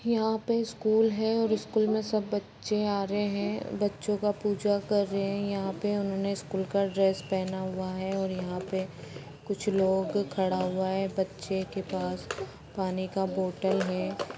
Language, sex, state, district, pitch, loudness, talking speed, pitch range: Hindi, female, Jharkhand, Jamtara, 195 Hz, -30 LUFS, 170 wpm, 190-205 Hz